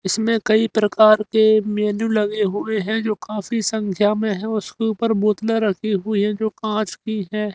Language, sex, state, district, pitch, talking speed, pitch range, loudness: Hindi, male, Haryana, Rohtak, 215 Hz, 185 wpm, 210-220 Hz, -20 LUFS